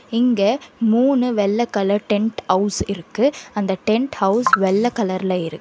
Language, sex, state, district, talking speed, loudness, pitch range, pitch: Tamil, female, Karnataka, Bangalore, 140 wpm, -19 LUFS, 195-240 Hz, 210 Hz